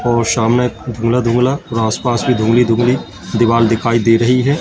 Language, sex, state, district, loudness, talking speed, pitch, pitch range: Hindi, male, Madhya Pradesh, Katni, -14 LUFS, 180 wpm, 120 Hz, 115-125 Hz